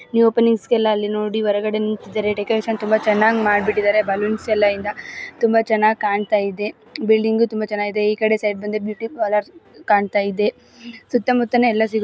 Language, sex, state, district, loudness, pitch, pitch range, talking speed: Kannada, female, Karnataka, Gulbarga, -19 LUFS, 215 Hz, 210-225 Hz, 145 wpm